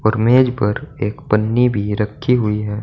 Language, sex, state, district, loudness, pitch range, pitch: Hindi, male, Uttar Pradesh, Saharanpur, -17 LUFS, 105-125 Hz, 110 Hz